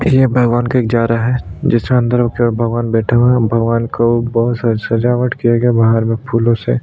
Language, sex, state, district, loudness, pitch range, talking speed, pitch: Hindi, male, Chhattisgarh, Sukma, -14 LUFS, 115-120 Hz, 195 wpm, 115 Hz